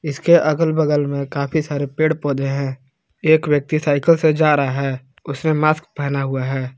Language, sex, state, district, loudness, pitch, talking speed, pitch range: Hindi, male, Jharkhand, Palamu, -18 LUFS, 145 Hz, 185 wpm, 140-155 Hz